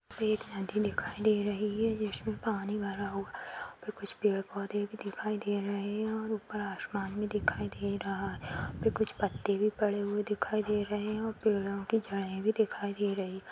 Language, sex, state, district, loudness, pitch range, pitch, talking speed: Kumaoni, female, Uttarakhand, Tehri Garhwal, -34 LUFS, 200-215 Hz, 205 Hz, 205 wpm